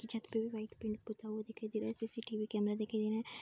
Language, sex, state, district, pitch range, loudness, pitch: Hindi, female, Bihar, Darbhanga, 215-225 Hz, -40 LUFS, 220 Hz